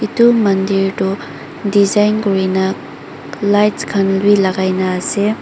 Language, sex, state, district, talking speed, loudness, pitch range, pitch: Nagamese, female, Mizoram, Aizawl, 120 wpm, -15 LUFS, 190-205 Hz, 195 Hz